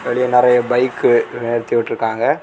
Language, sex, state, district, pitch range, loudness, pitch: Tamil, male, Tamil Nadu, Kanyakumari, 115-125 Hz, -16 LUFS, 120 Hz